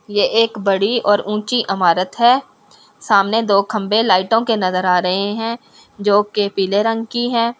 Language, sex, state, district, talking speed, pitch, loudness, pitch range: Hindi, female, Delhi, New Delhi, 175 wpm, 210 Hz, -16 LUFS, 200-230 Hz